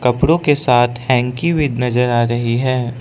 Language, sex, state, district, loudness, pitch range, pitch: Hindi, male, Arunachal Pradesh, Lower Dibang Valley, -16 LUFS, 120-140 Hz, 125 Hz